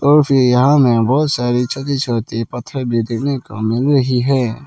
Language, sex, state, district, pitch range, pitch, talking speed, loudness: Hindi, male, Arunachal Pradesh, Lower Dibang Valley, 115-140 Hz, 125 Hz, 195 wpm, -16 LUFS